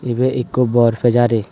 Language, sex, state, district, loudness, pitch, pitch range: Chakma, male, Tripura, West Tripura, -16 LUFS, 120 Hz, 120-125 Hz